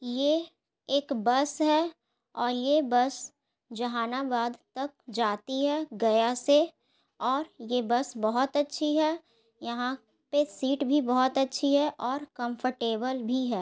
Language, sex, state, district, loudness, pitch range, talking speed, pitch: Hindi, female, Bihar, Gaya, -28 LUFS, 240-290 Hz, 135 wpm, 260 Hz